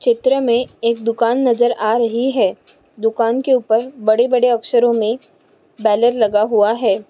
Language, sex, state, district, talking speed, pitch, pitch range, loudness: Hindi, female, Goa, North and South Goa, 160 wpm, 235 Hz, 220-245 Hz, -16 LUFS